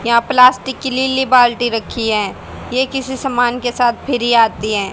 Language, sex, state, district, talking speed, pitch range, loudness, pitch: Hindi, female, Haryana, Charkhi Dadri, 185 wpm, 230-260 Hz, -15 LUFS, 245 Hz